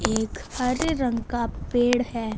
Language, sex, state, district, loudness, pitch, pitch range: Hindi, female, Punjab, Fazilka, -25 LUFS, 240 Hz, 230-250 Hz